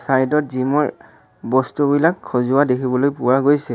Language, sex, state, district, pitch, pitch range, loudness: Assamese, male, Assam, Sonitpur, 135 Hz, 130-145 Hz, -18 LUFS